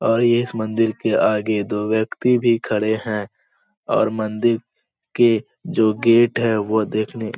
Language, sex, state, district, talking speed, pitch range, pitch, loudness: Hindi, male, Bihar, Purnia, 155 wpm, 110-115 Hz, 110 Hz, -19 LUFS